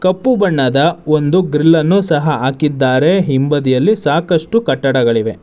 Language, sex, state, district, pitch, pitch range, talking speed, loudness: Kannada, male, Karnataka, Bangalore, 150 Hz, 135-180 Hz, 110 wpm, -13 LUFS